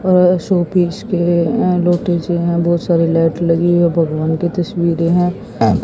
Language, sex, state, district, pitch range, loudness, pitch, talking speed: Hindi, female, Haryana, Jhajjar, 170-180 Hz, -15 LUFS, 175 Hz, 155 wpm